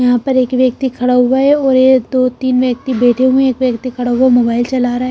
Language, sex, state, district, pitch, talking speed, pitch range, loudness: Hindi, female, Punjab, Kapurthala, 255 Hz, 270 wpm, 250-260 Hz, -13 LUFS